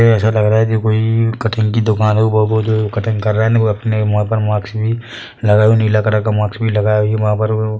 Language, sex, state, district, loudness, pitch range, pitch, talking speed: Hindi, male, Chhattisgarh, Bilaspur, -15 LUFS, 105-110 Hz, 110 Hz, 275 wpm